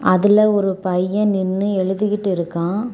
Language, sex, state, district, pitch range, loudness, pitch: Tamil, female, Tamil Nadu, Kanyakumari, 185-210 Hz, -18 LUFS, 195 Hz